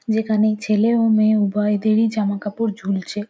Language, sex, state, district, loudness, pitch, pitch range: Bengali, female, West Bengal, Jhargram, -19 LUFS, 215 Hz, 205-220 Hz